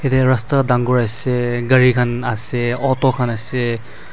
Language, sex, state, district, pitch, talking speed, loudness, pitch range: Nagamese, male, Nagaland, Dimapur, 125 Hz, 145 wpm, -17 LUFS, 120-130 Hz